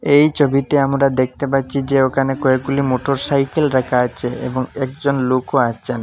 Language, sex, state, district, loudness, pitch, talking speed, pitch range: Bengali, male, Assam, Hailakandi, -17 LUFS, 135 Hz, 150 wpm, 130-140 Hz